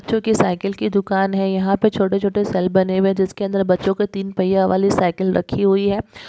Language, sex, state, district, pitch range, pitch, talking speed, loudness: Hindi, female, Maharashtra, Solapur, 190-200 Hz, 195 Hz, 240 wpm, -18 LUFS